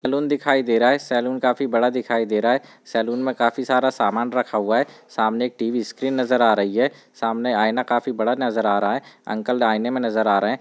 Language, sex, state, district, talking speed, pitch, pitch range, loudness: Hindi, male, Chhattisgarh, Balrampur, 245 wpm, 120 Hz, 110-130 Hz, -21 LUFS